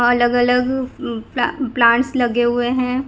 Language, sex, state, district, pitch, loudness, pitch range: Hindi, female, Gujarat, Gandhinagar, 245 Hz, -17 LUFS, 240-255 Hz